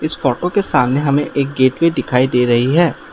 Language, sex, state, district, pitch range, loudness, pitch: Hindi, male, Assam, Sonitpur, 125-160 Hz, -15 LUFS, 135 Hz